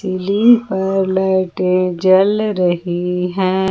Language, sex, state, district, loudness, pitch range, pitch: Hindi, female, Jharkhand, Ranchi, -15 LUFS, 180-195 Hz, 190 Hz